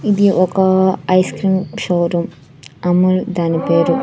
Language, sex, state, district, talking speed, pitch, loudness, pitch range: Telugu, female, Andhra Pradesh, Sri Satya Sai, 105 wpm, 185 Hz, -15 LUFS, 170-190 Hz